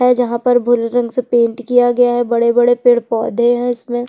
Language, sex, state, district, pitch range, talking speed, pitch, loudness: Hindi, female, Chhattisgarh, Sukma, 240-245 Hz, 220 wpm, 245 Hz, -14 LUFS